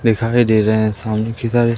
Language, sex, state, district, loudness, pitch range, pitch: Hindi, male, Madhya Pradesh, Umaria, -16 LUFS, 110-115 Hz, 115 Hz